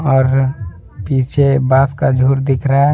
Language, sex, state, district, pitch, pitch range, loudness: Hindi, male, Jharkhand, Deoghar, 135 Hz, 130-135 Hz, -14 LUFS